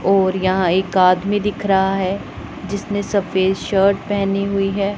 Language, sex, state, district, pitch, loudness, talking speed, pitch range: Hindi, male, Punjab, Pathankot, 195 Hz, -18 LUFS, 155 wpm, 190-200 Hz